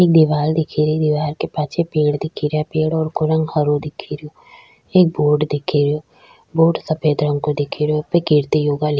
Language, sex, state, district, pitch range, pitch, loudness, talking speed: Rajasthani, female, Rajasthan, Churu, 150-160 Hz, 150 Hz, -18 LUFS, 200 wpm